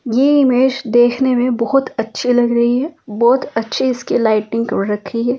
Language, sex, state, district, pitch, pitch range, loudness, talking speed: Hindi, female, Delhi, New Delhi, 245 Hz, 230-260 Hz, -15 LUFS, 190 wpm